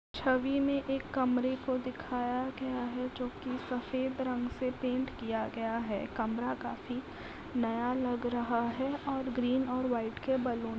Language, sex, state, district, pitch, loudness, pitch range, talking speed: Hindi, female, Uttar Pradesh, Hamirpur, 255 Hz, -34 LUFS, 245-260 Hz, 165 wpm